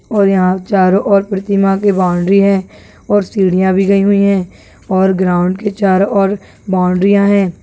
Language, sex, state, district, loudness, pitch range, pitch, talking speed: Hindi, female, Rajasthan, Churu, -12 LUFS, 185-200 Hz, 195 Hz, 165 wpm